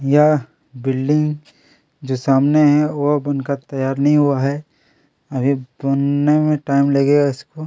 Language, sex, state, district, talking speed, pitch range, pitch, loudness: Hindi, male, Chhattisgarh, Kabirdham, 150 wpm, 135-150 Hz, 145 Hz, -17 LUFS